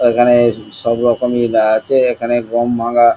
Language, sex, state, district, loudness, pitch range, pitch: Bengali, male, West Bengal, Kolkata, -14 LUFS, 115-120 Hz, 120 Hz